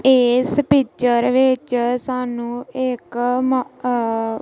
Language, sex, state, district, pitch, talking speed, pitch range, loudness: Punjabi, female, Punjab, Kapurthala, 250 Hz, 70 wpm, 240-255 Hz, -19 LUFS